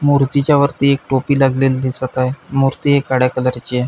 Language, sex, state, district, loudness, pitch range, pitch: Marathi, male, Maharashtra, Pune, -16 LUFS, 130-140 Hz, 135 Hz